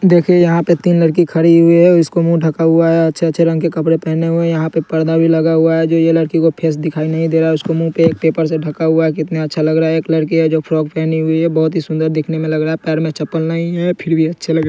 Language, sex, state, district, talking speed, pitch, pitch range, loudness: Hindi, male, Chandigarh, Chandigarh, 305 wpm, 160 Hz, 160-165 Hz, -14 LUFS